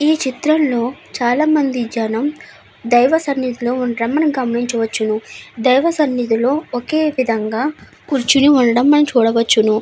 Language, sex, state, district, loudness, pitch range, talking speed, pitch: Telugu, female, Andhra Pradesh, Anantapur, -16 LUFS, 235-295 Hz, 100 wpm, 255 Hz